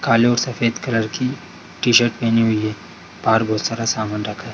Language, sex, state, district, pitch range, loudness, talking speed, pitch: Hindi, male, Bihar, Darbhanga, 110-120 Hz, -19 LUFS, 200 wpm, 115 Hz